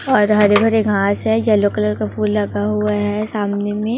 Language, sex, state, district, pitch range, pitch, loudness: Hindi, female, Chhattisgarh, Raipur, 205-215 Hz, 210 Hz, -17 LUFS